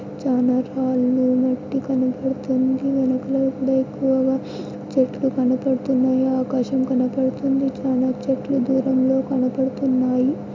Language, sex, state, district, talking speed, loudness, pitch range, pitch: Telugu, female, Andhra Pradesh, Anantapur, 80 wpm, -21 LUFS, 255-265 Hz, 260 Hz